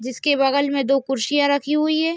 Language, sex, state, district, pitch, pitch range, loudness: Hindi, female, Jharkhand, Sahebganj, 280 Hz, 270-295 Hz, -19 LUFS